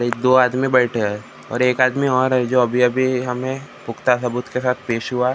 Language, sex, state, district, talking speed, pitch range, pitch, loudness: Hindi, male, Maharashtra, Gondia, 225 wpm, 125-130 Hz, 125 Hz, -18 LUFS